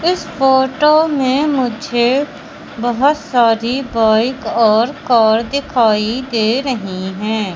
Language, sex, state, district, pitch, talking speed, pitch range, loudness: Hindi, male, Madhya Pradesh, Katni, 240 Hz, 105 wpm, 225-270 Hz, -15 LUFS